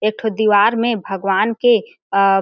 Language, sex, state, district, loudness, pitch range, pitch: Chhattisgarhi, female, Chhattisgarh, Jashpur, -16 LUFS, 195-230 Hz, 215 Hz